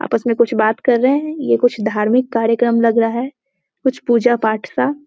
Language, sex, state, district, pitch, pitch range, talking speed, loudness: Hindi, female, Bihar, Muzaffarpur, 235 Hz, 225-260 Hz, 215 wpm, -16 LUFS